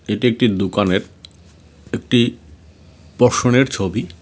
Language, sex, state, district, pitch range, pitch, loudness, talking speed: Bengali, male, Tripura, West Tripura, 85-120 Hz, 95 Hz, -17 LUFS, 85 wpm